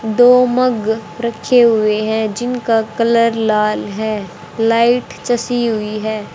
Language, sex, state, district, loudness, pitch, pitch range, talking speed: Hindi, male, Haryana, Rohtak, -15 LUFS, 225 Hz, 215-240 Hz, 125 wpm